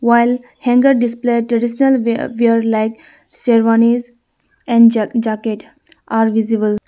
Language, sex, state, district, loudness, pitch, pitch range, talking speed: English, female, Arunachal Pradesh, Lower Dibang Valley, -15 LUFS, 235 Hz, 225-240 Hz, 105 wpm